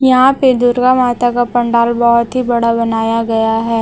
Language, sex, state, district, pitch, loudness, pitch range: Hindi, female, Chhattisgarh, Raipur, 240 Hz, -12 LUFS, 230-250 Hz